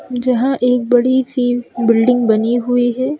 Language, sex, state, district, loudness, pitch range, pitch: Hindi, female, Madhya Pradesh, Bhopal, -15 LUFS, 240-255 Hz, 245 Hz